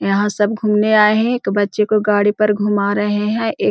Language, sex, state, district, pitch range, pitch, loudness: Hindi, female, Bihar, Jahanabad, 205-215 Hz, 210 Hz, -16 LUFS